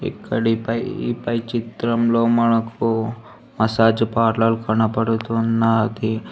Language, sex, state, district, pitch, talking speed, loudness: Telugu, female, Telangana, Hyderabad, 115 Hz, 65 wpm, -20 LUFS